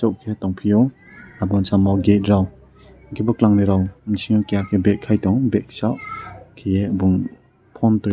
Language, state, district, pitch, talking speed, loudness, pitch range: Kokborok, Tripura, West Tripura, 100 Hz, 140 wpm, -19 LUFS, 95-105 Hz